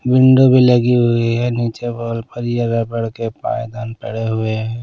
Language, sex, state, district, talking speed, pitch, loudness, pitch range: Hindi, male, Punjab, Pathankot, 185 wpm, 115 Hz, -16 LUFS, 115-120 Hz